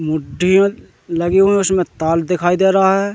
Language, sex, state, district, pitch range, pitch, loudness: Hindi, male, Madhya Pradesh, Katni, 165-195 Hz, 180 Hz, -15 LUFS